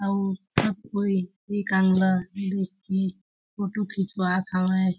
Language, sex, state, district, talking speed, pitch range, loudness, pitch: Chhattisgarhi, female, Chhattisgarh, Jashpur, 130 wpm, 185-195 Hz, -26 LUFS, 190 Hz